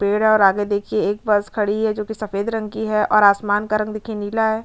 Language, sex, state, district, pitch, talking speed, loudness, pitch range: Hindi, female, Chhattisgarh, Bastar, 215 Hz, 285 wpm, -19 LUFS, 205-220 Hz